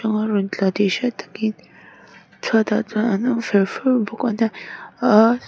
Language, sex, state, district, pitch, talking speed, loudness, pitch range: Mizo, female, Mizoram, Aizawl, 220 Hz, 185 wpm, -20 LUFS, 200-230 Hz